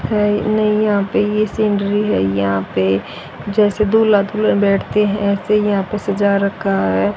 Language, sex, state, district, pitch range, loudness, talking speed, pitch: Hindi, female, Haryana, Jhajjar, 195-210 Hz, -16 LUFS, 170 wpm, 205 Hz